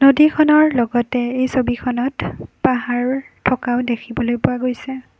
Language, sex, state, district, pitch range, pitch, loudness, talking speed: Assamese, female, Assam, Kamrup Metropolitan, 245-265 Hz, 255 Hz, -18 LUFS, 105 wpm